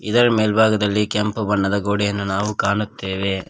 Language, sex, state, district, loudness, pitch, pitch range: Kannada, male, Karnataka, Koppal, -19 LUFS, 105 Hz, 100-105 Hz